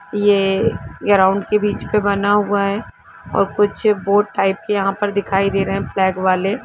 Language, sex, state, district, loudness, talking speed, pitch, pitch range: Hindi, female, Jharkhand, Jamtara, -17 LUFS, 200 wpm, 200 Hz, 195-205 Hz